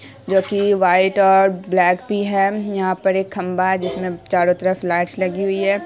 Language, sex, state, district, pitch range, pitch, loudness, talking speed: Hindi, female, Bihar, Saharsa, 185-195 Hz, 190 Hz, -18 LUFS, 195 wpm